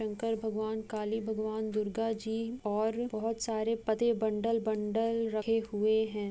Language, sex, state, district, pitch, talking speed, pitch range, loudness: Hindi, female, West Bengal, Purulia, 220 Hz, 140 wpm, 215-225 Hz, -33 LUFS